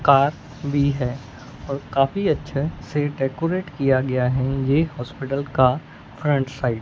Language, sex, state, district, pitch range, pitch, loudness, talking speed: Hindi, male, Punjab, Fazilka, 130-145 Hz, 135 Hz, -22 LUFS, 150 wpm